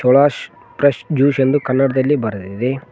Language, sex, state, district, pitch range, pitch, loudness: Kannada, male, Karnataka, Koppal, 125-140 Hz, 135 Hz, -16 LUFS